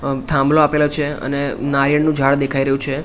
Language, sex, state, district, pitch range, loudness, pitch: Gujarati, male, Gujarat, Gandhinagar, 135-150 Hz, -17 LUFS, 140 Hz